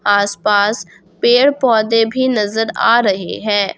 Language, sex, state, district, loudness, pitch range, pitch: Hindi, female, Jharkhand, Garhwa, -14 LUFS, 205-235 Hz, 220 Hz